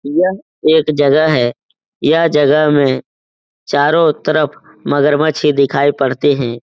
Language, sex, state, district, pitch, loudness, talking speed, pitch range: Hindi, male, Uttar Pradesh, Etah, 150 Hz, -13 LUFS, 125 wpm, 140-155 Hz